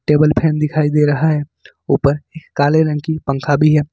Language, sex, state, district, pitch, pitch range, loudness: Hindi, male, Jharkhand, Ranchi, 150 Hz, 145-155 Hz, -16 LUFS